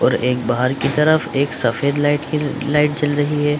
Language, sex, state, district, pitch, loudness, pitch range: Hindi, male, Bihar, Supaul, 145 Hz, -18 LUFS, 140-150 Hz